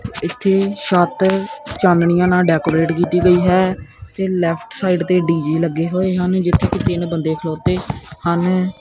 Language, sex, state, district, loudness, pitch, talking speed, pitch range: Punjabi, male, Punjab, Kapurthala, -17 LUFS, 180 Hz, 150 wpm, 170-185 Hz